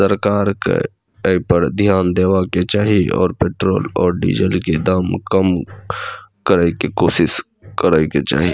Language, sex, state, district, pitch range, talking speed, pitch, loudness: Maithili, male, Bihar, Saharsa, 85-100 Hz, 145 wpm, 90 Hz, -16 LUFS